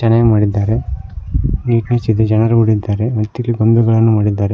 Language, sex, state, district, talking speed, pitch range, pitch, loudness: Kannada, male, Karnataka, Koppal, 120 wpm, 105-115 Hz, 110 Hz, -14 LUFS